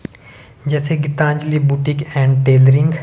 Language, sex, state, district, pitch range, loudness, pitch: Hindi, male, Himachal Pradesh, Shimla, 135-150 Hz, -15 LUFS, 145 Hz